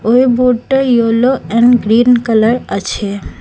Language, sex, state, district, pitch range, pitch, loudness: Bengali, female, Assam, Hailakandi, 225-250 Hz, 235 Hz, -12 LUFS